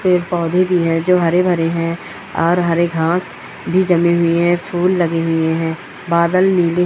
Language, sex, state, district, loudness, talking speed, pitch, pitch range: Hindi, female, West Bengal, Purulia, -16 LUFS, 185 wpm, 175 Hz, 165-180 Hz